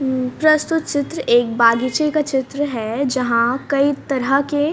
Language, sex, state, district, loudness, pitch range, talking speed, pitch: Hindi, female, Haryana, Rohtak, -18 LUFS, 250-290 Hz, 150 wpm, 275 Hz